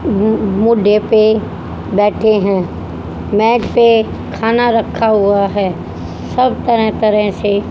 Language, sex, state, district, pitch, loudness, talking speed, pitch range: Hindi, female, Haryana, Jhajjar, 215 Hz, -13 LUFS, 115 wpm, 200-225 Hz